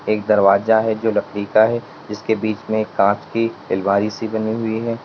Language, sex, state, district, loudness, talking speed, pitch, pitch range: Hindi, male, Uttar Pradesh, Lalitpur, -19 LUFS, 200 wpm, 110 Hz, 105-110 Hz